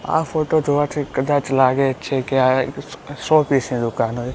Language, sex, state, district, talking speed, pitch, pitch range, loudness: Gujarati, male, Gujarat, Gandhinagar, 195 wpm, 135 Hz, 130-145 Hz, -19 LUFS